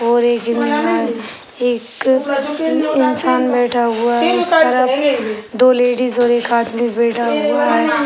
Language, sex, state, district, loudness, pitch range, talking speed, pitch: Hindi, female, Uttar Pradesh, Gorakhpur, -15 LUFS, 235-275 Hz, 125 wpm, 245 Hz